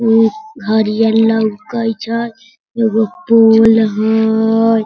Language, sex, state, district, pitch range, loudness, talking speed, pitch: Hindi, female, Bihar, Sitamarhi, 220-230 Hz, -13 LUFS, 85 wpm, 225 Hz